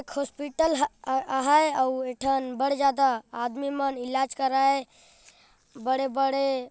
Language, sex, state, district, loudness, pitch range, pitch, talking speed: Sadri, male, Chhattisgarh, Jashpur, -26 LUFS, 260-280 Hz, 270 Hz, 105 wpm